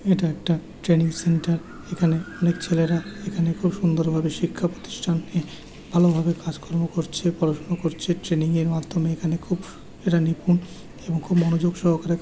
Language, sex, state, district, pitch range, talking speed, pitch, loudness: Bengali, male, West Bengal, Paschim Medinipur, 165-175 Hz, 135 wpm, 170 Hz, -24 LUFS